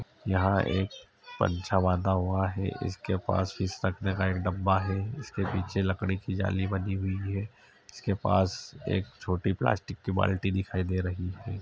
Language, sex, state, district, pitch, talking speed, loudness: Hindi, male, Uttar Pradesh, Etah, 95 Hz, 175 wpm, -30 LUFS